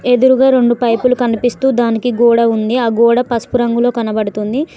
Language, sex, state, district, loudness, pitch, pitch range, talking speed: Telugu, female, Telangana, Mahabubabad, -13 LUFS, 240 Hz, 230-250 Hz, 150 wpm